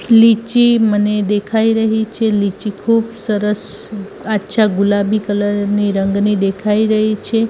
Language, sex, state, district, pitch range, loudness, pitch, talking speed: Gujarati, female, Gujarat, Gandhinagar, 205-220 Hz, -15 LUFS, 210 Hz, 130 wpm